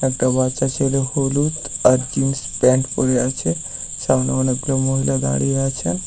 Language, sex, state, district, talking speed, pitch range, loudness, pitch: Bengali, male, West Bengal, Paschim Medinipur, 150 wpm, 125-135 Hz, -18 LUFS, 130 Hz